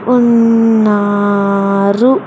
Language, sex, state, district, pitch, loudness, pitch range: Telugu, female, Andhra Pradesh, Sri Satya Sai, 210 Hz, -11 LUFS, 200-230 Hz